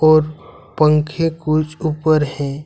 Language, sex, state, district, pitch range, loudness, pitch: Hindi, male, Jharkhand, Ranchi, 150-155 Hz, -17 LUFS, 155 Hz